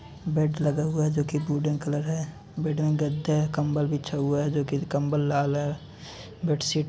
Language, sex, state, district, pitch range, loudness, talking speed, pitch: Hindi, male, Uttar Pradesh, Varanasi, 145-155 Hz, -27 LUFS, 200 wpm, 150 Hz